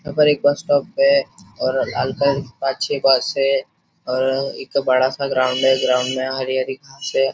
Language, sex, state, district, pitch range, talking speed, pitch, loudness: Hindi, male, Maharashtra, Nagpur, 130-140 Hz, 190 wpm, 135 Hz, -19 LUFS